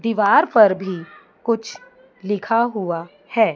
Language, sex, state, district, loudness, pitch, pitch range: Hindi, female, Chandigarh, Chandigarh, -19 LUFS, 215 Hz, 195-235 Hz